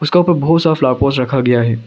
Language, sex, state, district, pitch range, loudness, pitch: Hindi, male, Arunachal Pradesh, Longding, 125-160 Hz, -13 LUFS, 135 Hz